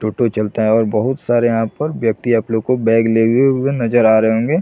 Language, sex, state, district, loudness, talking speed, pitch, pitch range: Hindi, male, Chhattisgarh, Bilaspur, -15 LUFS, 245 wpm, 115 Hz, 110-125 Hz